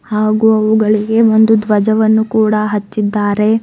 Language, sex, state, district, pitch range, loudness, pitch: Kannada, female, Karnataka, Bidar, 210-220 Hz, -12 LUFS, 215 Hz